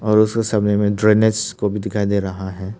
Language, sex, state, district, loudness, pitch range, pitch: Hindi, male, Arunachal Pradesh, Papum Pare, -18 LUFS, 100-110 Hz, 105 Hz